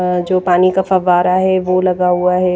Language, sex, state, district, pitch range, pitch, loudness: Hindi, female, Himachal Pradesh, Shimla, 180-185 Hz, 185 Hz, -13 LUFS